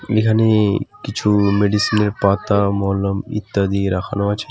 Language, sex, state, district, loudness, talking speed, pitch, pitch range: Bengali, male, West Bengal, Alipurduar, -18 LUFS, 120 wpm, 100 Hz, 100-105 Hz